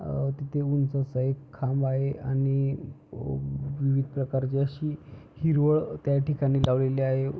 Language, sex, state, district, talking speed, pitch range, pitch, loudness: Marathi, male, Maharashtra, Pune, 140 wpm, 135-140 Hz, 135 Hz, -27 LUFS